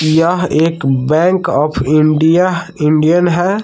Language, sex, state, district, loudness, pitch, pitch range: Hindi, male, Jharkhand, Palamu, -12 LUFS, 160 Hz, 155-175 Hz